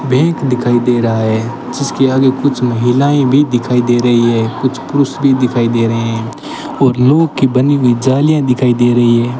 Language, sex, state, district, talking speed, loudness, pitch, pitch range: Hindi, male, Rajasthan, Bikaner, 200 wpm, -12 LUFS, 125 Hz, 120-135 Hz